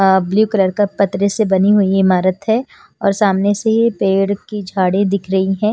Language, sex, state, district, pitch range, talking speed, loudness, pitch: Hindi, female, Himachal Pradesh, Shimla, 190-210 Hz, 210 wpm, -15 LUFS, 200 Hz